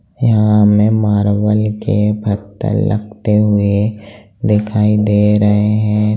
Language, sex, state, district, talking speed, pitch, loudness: Hindi, male, Bihar, Jahanabad, 105 wpm, 105 Hz, -14 LUFS